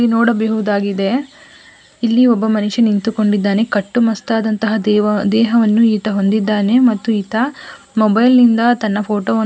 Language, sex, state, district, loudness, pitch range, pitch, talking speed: Kannada, female, Karnataka, Gulbarga, -14 LUFS, 210-235 Hz, 220 Hz, 135 wpm